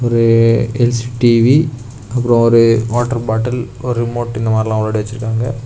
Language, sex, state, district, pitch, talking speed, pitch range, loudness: Tamil, male, Tamil Nadu, Kanyakumari, 115 Hz, 150 wpm, 115-120 Hz, -14 LUFS